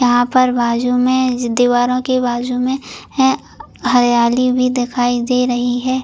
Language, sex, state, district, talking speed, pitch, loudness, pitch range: Hindi, female, Chhattisgarh, Bilaspur, 150 wpm, 250 Hz, -15 LUFS, 245-255 Hz